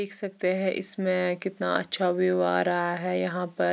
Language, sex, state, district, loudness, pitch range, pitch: Hindi, female, Chandigarh, Chandigarh, -22 LUFS, 175-190 Hz, 180 Hz